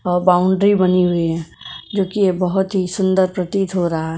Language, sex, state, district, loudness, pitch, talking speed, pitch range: Hindi, female, Goa, North and South Goa, -17 LUFS, 185 Hz, 200 wpm, 180-190 Hz